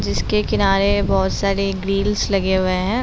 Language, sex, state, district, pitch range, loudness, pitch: Hindi, female, Bihar, Gopalganj, 190-205 Hz, -19 LUFS, 195 Hz